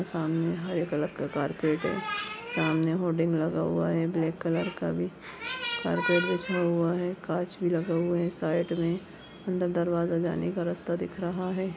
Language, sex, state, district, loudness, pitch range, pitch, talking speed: Hindi, female, Chhattisgarh, Bastar, -29 LUFS, 165-180 Hz, 170 Hz, 175 wpm